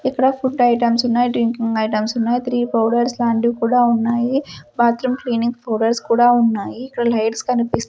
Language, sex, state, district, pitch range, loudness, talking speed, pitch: Telugu, female, Andhra Pradesh, Sri Satya Sai, 230-245 Hz, -18 LUFS, 160 wpm, 235 Hz